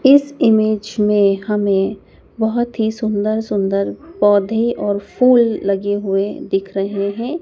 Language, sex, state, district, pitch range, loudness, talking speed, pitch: Hindi, female, Madhya Pradesh, Dhar, 200-225 Hz, -17 LUFS, 130 wpm, 210 Hz